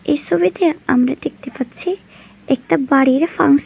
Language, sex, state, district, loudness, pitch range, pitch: Bengali, female, Tripura, West Tripura, -17 LUFS, 255-310 Hz, 270 Hz